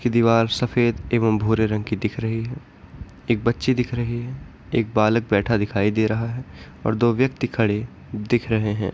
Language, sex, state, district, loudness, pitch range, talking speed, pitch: Hindi, male, Bihar, Kishanganj, -22 LUFS, 110-120 Hz, 195 wpm, 115 Hz